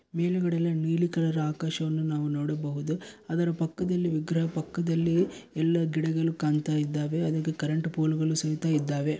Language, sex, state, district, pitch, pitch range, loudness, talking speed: Kannada, male, Karnataka, Bellary, 160 Hz, 155-170 Hz, -28 LUFS, 135 wpm